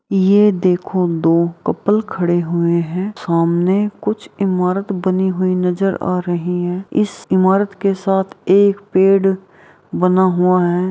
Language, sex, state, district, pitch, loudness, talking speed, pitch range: Hindi, female, Bihar, Araria, 185 Hz, -16 LUFS, 140 wpm, 180-195 Hz